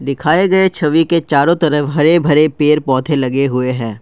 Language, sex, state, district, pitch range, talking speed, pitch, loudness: Hindi, male, Assam, Kamrup Metropolitan, 140-165 Hz, 195 wpm, 150 Hz, -13 LUFS